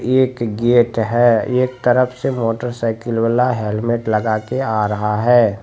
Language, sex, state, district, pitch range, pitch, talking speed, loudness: Hindi, male, Bihar, Begusarai, 110-125 Hz, 120 Hz, 160 wpm, -17 LUFS